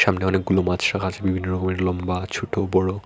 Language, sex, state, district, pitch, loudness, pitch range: Bengali, male, Tripura, Unakoti, 95 Hz, -23 LUFS, 90-95 Hz